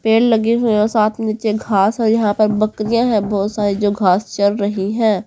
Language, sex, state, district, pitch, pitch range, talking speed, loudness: Hindi, female, Haryana, Charkhi Dadri, 215 Hz, 205-220 Hz, 240 wpm, -16 LUFS